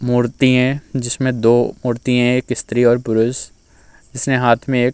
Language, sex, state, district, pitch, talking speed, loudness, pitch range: Hindi, male, Uttar Pradesh, Muzaffarnagar, 125 Hz, 180 wpm, -16 LUFS, 120-130 Hz